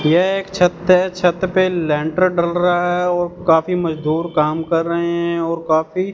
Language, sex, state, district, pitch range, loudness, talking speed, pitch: Hindi, male, Punjab, Fazilka, 165-180 Hz, -17 LUFS, 185 wpm, 175 Hz